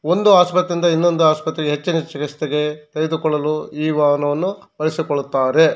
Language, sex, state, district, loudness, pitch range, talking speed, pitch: Kannada, male, Karnataka, Shimoga, -18 LUFS, 150-170 Hz, 115 wpm, 155 Hz